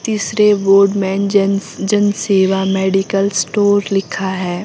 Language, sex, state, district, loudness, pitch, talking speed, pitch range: Hindi, female, Himachal Pradesh, Shimla, -15 LUFS, 195 Hz, 130 wpm, 195-205 Hz